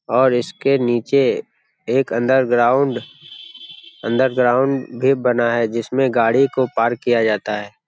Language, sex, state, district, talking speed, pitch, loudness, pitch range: Hindi, male, Bihar, Jamui, 145 wpm, 125 Hz, -17 LUFS, 115-135 Hz